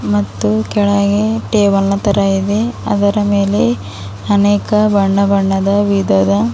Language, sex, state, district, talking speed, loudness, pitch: Kannada, female, Karnataka, Bidar, 110 wpm, -14 LUFS, 195 Hz